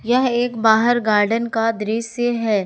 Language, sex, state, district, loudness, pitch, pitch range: Hindi, female, Jharkhand, Ranchi, -18 LUFS, 230 Hz, 220-240 Hz